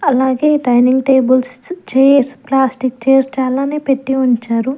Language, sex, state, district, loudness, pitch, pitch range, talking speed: Telugu, female, Andhra Pradesh, Sri Satya Sai, -13 LUFS, 265 Hz, 255-275 Hz, 115 wpm